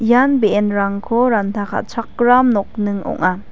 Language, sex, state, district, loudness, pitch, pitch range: Garo, female, Meghalaya, West Garo Hills, -16 LUFS, 215 Hz, 200-240 Hz